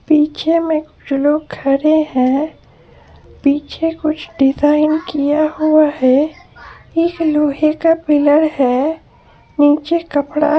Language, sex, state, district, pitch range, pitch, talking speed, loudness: Hindi, female, Bihar, Supaul, 290-315 Hz, 305 Hz, 100 wpm, -15 LUFS